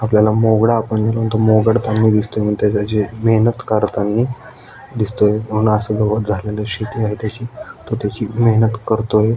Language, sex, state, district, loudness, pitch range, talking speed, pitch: Marathi, male, Maharashtra, Aurangabad, -16 LUFS, 105-115 Hz, 145 wpm, 110 Hz